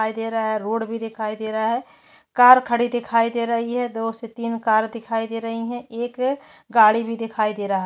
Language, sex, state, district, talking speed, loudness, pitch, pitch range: Hindi, female, Chhattisgarh, Kabirdham, 235 wpm, -21 LUFS, 230 Hz, 220-240 Hz